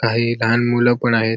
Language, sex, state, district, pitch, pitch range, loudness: Marathi, male, Maharashtra, Sindhudurg, 115 Hz, 115-120 Hz, -17 LUFS